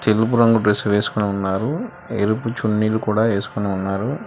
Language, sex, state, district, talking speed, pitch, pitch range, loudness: Telugu, male, Telangana, Hyderabad, 140 wpm, 110 Hz, 105-115 Hz, -20 LUFS